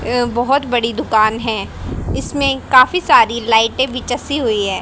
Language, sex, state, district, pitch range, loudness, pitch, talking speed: Hindi, female, Haryana, Jhajjar, 225-265 Hz, -15 LUFS, 245 Hz, 160 wpm